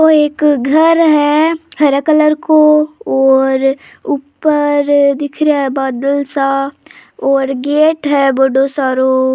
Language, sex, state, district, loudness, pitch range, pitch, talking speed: Rajasthani, female, Rajasthan, Churu, -12 LUFS, 270-305 Hz, 285 Hz, 115 wpm